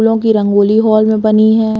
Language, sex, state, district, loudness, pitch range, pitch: Hindi, female, Chhattisgarh, Bilaspur, -11 LUFS, 215-220 Hz, 220 Hz